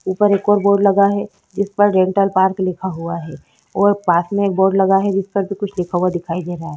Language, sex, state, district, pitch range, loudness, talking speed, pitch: Hindi, female, Chhattisgarh, Korba, 180-200 Hz, -17 LUFS, 250 wpm, 195 Hz